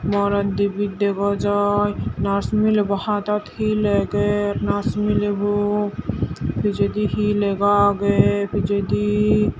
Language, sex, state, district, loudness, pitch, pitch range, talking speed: Chakma, female, Tripura, Dhalai, -20 LUFS, 200 Hz, 200-205 Hz, 100 wpm